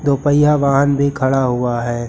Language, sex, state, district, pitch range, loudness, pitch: Hindi, male, Uttar Pradesh, Lucknow, 125-140 Hz, -15 LUFS, 140 Hz